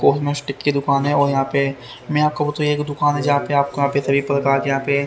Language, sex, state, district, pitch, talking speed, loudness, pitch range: Hindi, male, Haryana, Rohtak, 140 Hz, 260 wpm, -19 LUFS, 140-145 Hz